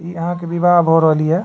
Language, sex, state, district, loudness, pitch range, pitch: Maithili, male, Bihar, Supaul, -15 LUFS, 165-175 Hz, 170 Hz